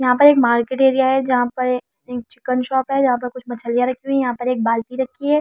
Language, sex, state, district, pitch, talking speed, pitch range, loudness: Hindi, female, Delhi, New Delhi, 255 Hz, 275 wpm, 245-265 Hz, -18 LUFS